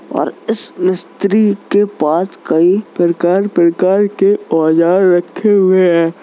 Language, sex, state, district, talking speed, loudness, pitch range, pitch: Hindi, male, Uttar Pradesh, Jalaun, 125 wpm, -13 LUFS, 175-205 Hz, 185 Hz